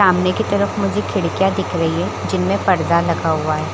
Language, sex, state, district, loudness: Hindi, female, Chhattisgarh, Bilaspur, -18 LUFS